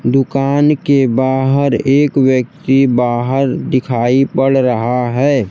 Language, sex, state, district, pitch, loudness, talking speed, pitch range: Hindi, male, Bihar, Kaimur, 135 Hz, -13 LUFS, 110 wpm, 125-135 Hz